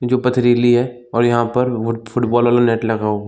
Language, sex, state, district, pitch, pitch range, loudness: Hindi, male, Chhattisgarh, Bilaspur, 120 Hz, 115-125 Hz, -16 LUFS